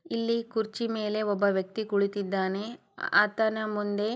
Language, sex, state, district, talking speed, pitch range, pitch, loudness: Kannada, female, Karnataka, Chamarajanagar, 115 wpm, 200-220 Hz, 210 Hz, -28 LUFS